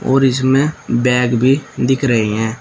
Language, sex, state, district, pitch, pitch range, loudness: Hindi, male, Uttar Pradesh, Shamli, 125 Hz, 120-135 Hz, -15 LUFS